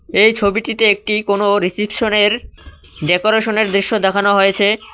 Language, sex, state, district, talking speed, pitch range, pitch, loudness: Bengali, male, West Bengal, Cooch Behar, 110 wpm, 195-220 Hz, 205 Hz, -15 LUFS